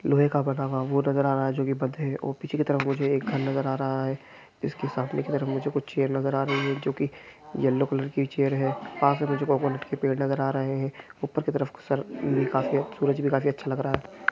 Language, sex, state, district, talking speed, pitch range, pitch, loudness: Hindi, male, Chhattisgarh, Raigarh, 265 wpm, 135-140 Hz, 140 Hz, -27 LUFS